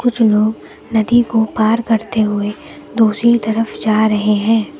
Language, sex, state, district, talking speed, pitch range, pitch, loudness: Hindi, female, Uttar Pradesh, Lucknow, 150 wpm, 215-230 Hz, 220 Hz, -15 LUFS